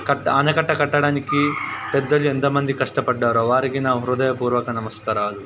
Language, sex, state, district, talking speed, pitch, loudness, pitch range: Telugu, male, Telangana, Karimnagar, 110 wpm, 135 Hz, -20 LUFS, 125-145 Hz